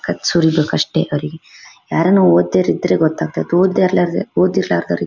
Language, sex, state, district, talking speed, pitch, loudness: Kannada, female, Karnataka, Bellary, 140 wpm, 145 Hz, -15 LUFS